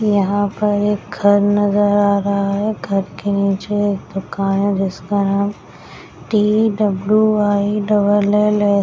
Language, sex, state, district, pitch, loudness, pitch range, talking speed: Hindi, female, Bihar, Madhepura, 205 Hz, -17 LUFS, 200-210 Hz, 155 wpm